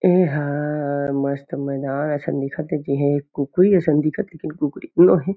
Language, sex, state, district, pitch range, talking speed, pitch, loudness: Chhattisgarhi, male, Chhattisgarh, Kabirdham, 140-165 Hz, 180 wpm, 150 Hz, -21 LUFS